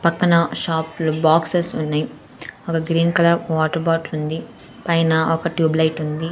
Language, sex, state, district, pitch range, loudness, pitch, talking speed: Telugu, female, Andhra Pradesh, Sri Satya Sai, 160-170 Hz, -19 LUFS, 165 Hz, 150 wpm